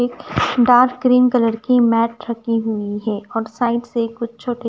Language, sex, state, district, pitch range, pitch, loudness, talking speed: Hindi, female, Punjab, Kapurthala, 225-245 Hz, 235 Hz, -18 LUFS, 165 wpm